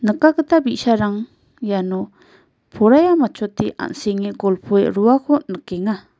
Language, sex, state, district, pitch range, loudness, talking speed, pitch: Garo, female, Meghalaya, West Garo Hills, 200-270 Hz, -18 LUFS, 75 wpm, 215 Hz